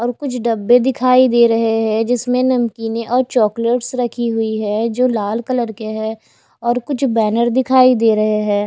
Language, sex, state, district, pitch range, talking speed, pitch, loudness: Hindi, female, Bihar, West Champaran, 225-250 Hz, 180 wpm, 235 Hz, -16 LUFS